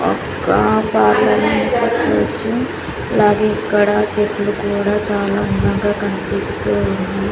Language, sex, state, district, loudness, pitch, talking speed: Telugu, female, Andhra Pradesh, Sri Satya Sai, -16 LUFS, 200 Hz, 75 wpm